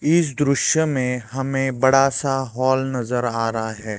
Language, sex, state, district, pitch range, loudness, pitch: Hindi, male, Chhattisgarh, Raipur, 125-135 Hz, -20 LUFS, 130 Hz